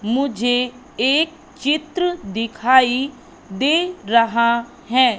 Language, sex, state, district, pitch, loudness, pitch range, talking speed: Hindi, female, Madhya Pradesh, Katni, 255 Hz, -19 LUFS, 235-290 Hz, 80 wpm